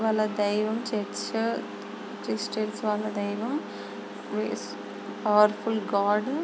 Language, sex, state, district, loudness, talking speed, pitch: Telugu, female, Andhra Pradesh, Chittoor, -28 LUFS, 105 wpm, 210 Hz